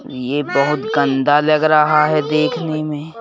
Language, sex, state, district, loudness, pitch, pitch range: Hindi, male, Madhya Pradesh, Bhopal, -16 LUFS, 150 Hz, 145-155 Hz